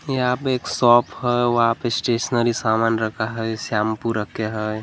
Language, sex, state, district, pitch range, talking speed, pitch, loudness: Hindi, male, Maharashtra, Gondia, 110-120 Hz, 175 wpm, 115 Hz, -21 LUFS